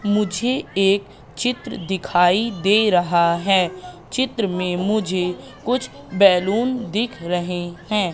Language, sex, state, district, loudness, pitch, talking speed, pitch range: Hindi, female, Madhya Pradesh, Katni, -20 LUFS, 190 Hz, 110 wpm, 180-215 Hz